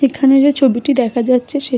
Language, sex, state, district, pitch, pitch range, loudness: Bengali, female, West Bengal, Malda, 270 Hz, 250-280 Hz, -13 LUFS